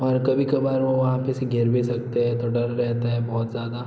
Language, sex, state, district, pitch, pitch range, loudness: Hindi, male, Bihar, Araria, 120 Hz, 120-130 Hz, -23 LUFS